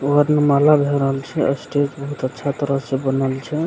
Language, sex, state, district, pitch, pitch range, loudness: Maithili, male, Bihar, Begusarai, 140 Hz, 135-145 Hz, -19 LUFS